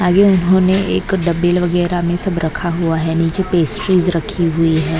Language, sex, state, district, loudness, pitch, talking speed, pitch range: Hindi, female, Maharashtra, Mumbai Suburban, -15 LUFS, 175 Hz, 180 wpm, 165-185 Hz